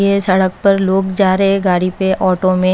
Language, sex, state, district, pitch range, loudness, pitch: Hindi, female, Haryana, Charkhi Dadri, 185-195 Hz, -14 LUFS, 190 Hz